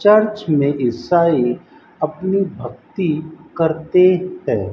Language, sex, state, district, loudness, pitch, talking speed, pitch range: Hindi, male, Rajasthan, Bikaner, -18 LUFS, 165 Hz, 90 wpm, 155-185 Hz